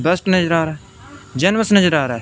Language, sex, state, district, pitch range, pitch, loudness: Hindi, male, Punjab, Fazilka, 125-185 Hz, 160 Hz, -16 LUFS